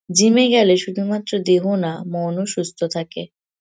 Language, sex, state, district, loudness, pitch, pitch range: Bengali, female, West Bengal, Kolkata, -18 LUFS, 185 Hz, 170-200 Hz